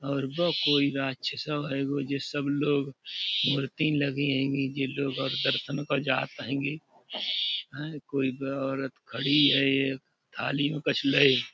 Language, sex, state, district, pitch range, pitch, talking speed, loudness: Hindi, male, Uttar Pradesh, Budaun, 135-145 Hz, 140 Hz, 155 wpm, -28 LUFS